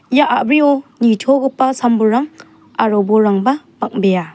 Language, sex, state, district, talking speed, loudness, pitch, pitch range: Garo, female, Meghalaya, South Garo Hills, 95 wpm, -14 LUFS, 245 Hz, 220-275 Hz